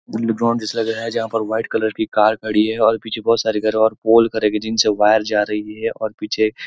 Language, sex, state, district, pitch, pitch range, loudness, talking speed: Hindi, male, Uttarakhand, Uttarkashi, 110 Hz, 110-115 Hz, -18 LUFS, 290 wpm